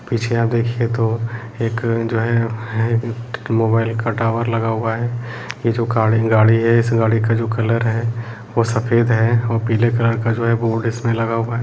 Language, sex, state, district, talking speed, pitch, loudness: Kumaoni, male, Uttarakhand, Uttarkashi, 205 wpm, 115 Hz, -18 LUFS